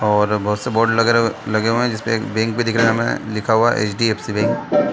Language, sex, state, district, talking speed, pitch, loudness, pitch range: Hindi, male, Chhattisgarh, Bastar, 255 wpm, 115 Hz, -18 LUFS, 105-115 Hz